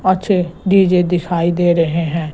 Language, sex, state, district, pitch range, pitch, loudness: Hindi, female, Gujarat, Gandhinagar, 170-185 Hz, 175 Hz, -15 LUFS